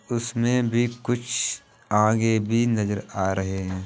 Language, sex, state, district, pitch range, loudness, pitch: Hindi, male, Uttar Pradesh, Hamirpur, 105-120 Hz, -24 LUFS, 115 Hz